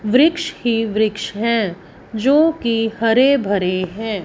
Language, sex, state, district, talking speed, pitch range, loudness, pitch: Hindi, female, Punjab, Fazilka, 115 wpm, 210-250 Hz, -17 LUFS, 225 Hz